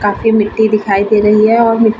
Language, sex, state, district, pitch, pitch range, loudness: Hindi, female, Bihar, Vaishali, 215 Hz, 210-225 Hz, -11 LUFS